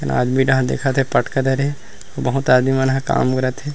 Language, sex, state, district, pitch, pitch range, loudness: Chhattisgarhi, male, Chhattisgarh, Rajnandgaon, 135 Hz, 130-135 Hz, -18 LUFS